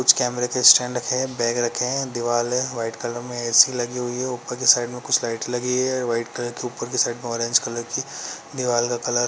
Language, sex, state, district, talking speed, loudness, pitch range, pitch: Hindi, male, Uttar Pradesh, Muzaffarnagar, 250 wpm, -21 LUFS, 120-125 Hz, 120 Hz